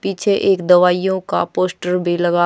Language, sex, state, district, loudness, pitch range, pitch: Hindi, female, Haryana, Charkhi Dadri, -16 LUFS, 180-190 Hz, 180 Hz